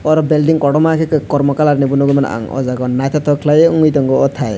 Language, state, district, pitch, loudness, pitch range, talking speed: Kokborok, Tripura, West Tripura, 145 Hz, -13 LUFS, 135-155 Hz, 275 wpm